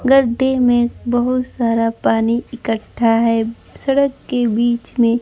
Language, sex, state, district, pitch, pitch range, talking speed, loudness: Hindi, female, Bihar, Kaimur, 240 Hz, 230-250 Hz, 125 wpm, -17 LUFS